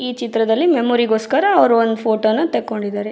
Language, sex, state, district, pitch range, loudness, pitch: Kannada, female, Karnataka, Raichur, 220-245 Hz, -16 LUFS, 225 Hz